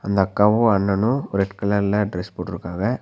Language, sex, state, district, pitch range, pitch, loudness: Tamil, male, Tamil Nadu, Nilgiris, 95-105 Hz, 100 Hz, -21 LUFS